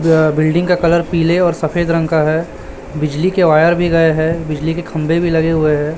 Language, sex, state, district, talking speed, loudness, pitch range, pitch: Hindi, male, Chhattisgarh, Raipur, 230 wpm, -14 LUFS, 155-170 Hz, 165 Hz